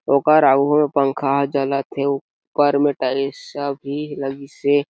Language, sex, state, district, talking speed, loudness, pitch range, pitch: Chhattisgarhi, male, Chhattisgarh, Sarguja, 170 wpm, -19 LUFS, 140-145 Hz, 140 Hz